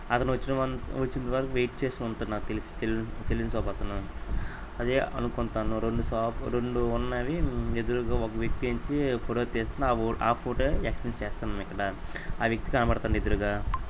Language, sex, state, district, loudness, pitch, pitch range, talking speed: Telugu, male, Andhra Pradesh, Krishna, -31 LUFS, 115 Hz, 110-125 Hz, 165 wpm